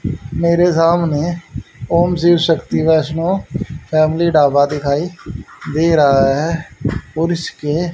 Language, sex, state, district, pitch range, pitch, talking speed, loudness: Hindi, male, Haryana, Rohtak, 145-170 Hz, 160 Hz, 105 wpm, -16 LUFS